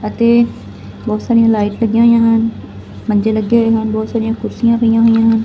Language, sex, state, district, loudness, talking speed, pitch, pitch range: Punjabi, female, Punjab, Fazilka, -13 LUFS, 185 wpm, 225 Hz, 215-230 Hz